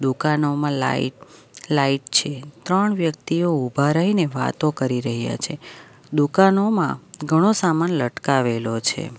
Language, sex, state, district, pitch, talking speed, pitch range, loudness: Gujarati, female, Gujarat, Valsad, 150 Hz, 110 wpm, 130-170 Hz, -21 LUFS